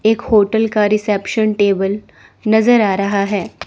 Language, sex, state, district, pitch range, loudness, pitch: Hindi, female, Chandigarh, Chandigarh, 200-220 Hz, -15 LUFS, 210 Hz